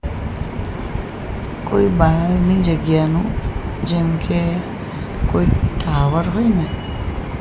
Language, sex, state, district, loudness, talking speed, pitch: Gujarati, female, Gujarat, Gandhinagar, -19 LUFS, 75 wpm, 165 Hz